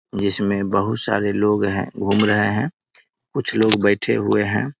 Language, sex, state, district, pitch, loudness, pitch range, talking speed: Hindi, male, Bihar, Muzaffarpur, 105 Hz, -20 LUFS, 100-105 Hz, 175 wpm